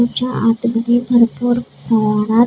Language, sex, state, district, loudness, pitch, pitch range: Marathi, female, Maharashtra, Gondia, -16 LUFS, 235 Hz, 230-240 Hz